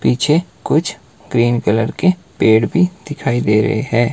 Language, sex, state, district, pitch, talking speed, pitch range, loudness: Hindi, male, Himachal Pradesh, Shimla, 120 Hz, 160 wpm, 110-160 Hz, -16 LUFS